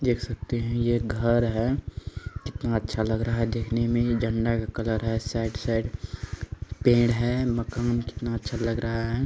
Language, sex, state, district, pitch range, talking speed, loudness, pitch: Hindi, male, Bihar, Gopalganj, 110-120 Hz, 190 wpm, -27 LUFS, 115 Hz